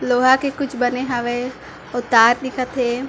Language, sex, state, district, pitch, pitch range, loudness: Chhattisgarhi, female, Chhattisgarh, Bilaspur, 250 Hz, 245-260 Hz, -18 LUFS